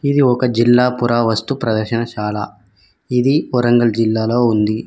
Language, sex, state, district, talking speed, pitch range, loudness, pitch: Telugu, male, Telangana, Mahabubabad, 110 wpm, 110-125 Hz, -16 LUFS, 115 Hz